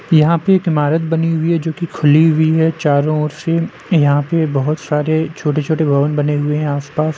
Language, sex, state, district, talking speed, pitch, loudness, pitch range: Hindi, male, Uttar Pradesh, Jalaun, 200 wpm, 155 Hz, -15 LUFS, 150-165 Hz